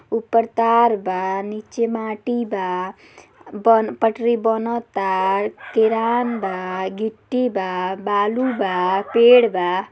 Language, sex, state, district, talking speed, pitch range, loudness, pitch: Bhojpuri, female, Uttar Pradesh, Deoria, 105 wpm, 190-230 Hz, -19 LUFS, 220 Hz